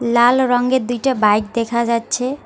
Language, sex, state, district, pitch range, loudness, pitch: Bengali, female, West Bengal, Alipurduar, 235-255 Hz, -16 LUFS, 240 Hz